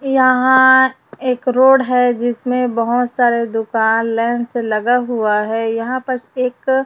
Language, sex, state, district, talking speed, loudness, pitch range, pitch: Hindi, female, Chhattisgarh, Raipur, 130 wpm, -15 LUFS, 230-255 Hz, 245 Hz